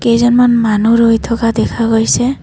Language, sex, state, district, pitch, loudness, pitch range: Assamese, female, Assam, Kamrup Metropolitan, 230 Hz, -11 LUFS, 225-240 Hz